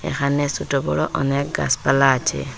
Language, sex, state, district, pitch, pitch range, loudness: Bengali, female, Assam, Hailakandi, 140 Hz, 135-140 Hz, -20 LUFS